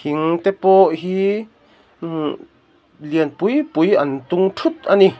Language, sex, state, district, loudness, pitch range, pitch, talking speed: Mizo, male, Mizoram, Aizawl, -17 LUFS, 155-195 Hz, 185 Hz, 150 wpm